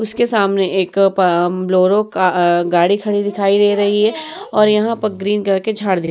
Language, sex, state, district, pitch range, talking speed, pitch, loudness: Hindi, female, Uttar Pradesh, Muzaffarnagar, 185-210 Hz, 195 wpm, 200 Hz, -15 LUFS